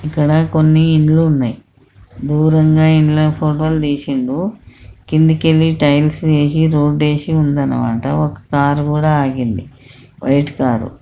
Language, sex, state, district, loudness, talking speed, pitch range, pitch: Telugu, male, Telangana, Karimnagar, -14 LUFS, 120 wpm, 135-155 Hz, 150 Hz